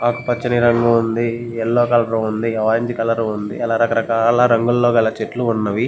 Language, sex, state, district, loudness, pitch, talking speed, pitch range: Telugu, male, Andhra Pradesh, Guntur, -17 LUFS, 115 Hz, 155 wpm, 115-120 Hz